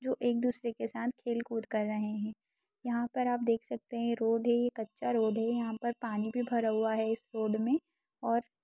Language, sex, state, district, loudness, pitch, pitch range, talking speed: Hindi, female, Chhattisgarh, Kabirdham, -33 LUFS, 235 Hz, 220-240 Hz, 230 wpm